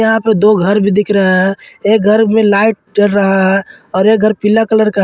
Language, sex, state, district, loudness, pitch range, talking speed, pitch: Hindi, male, Jharkhand, Ranchi, -11 LUFS, 195-220 Hz, 260 wpm, 210 Hz